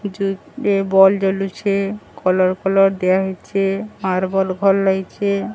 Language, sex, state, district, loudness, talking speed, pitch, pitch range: Odia, male, Odisha, Sambalpur, -18 LUFS, 120 wpm, 195 Hz, 190-200 Hz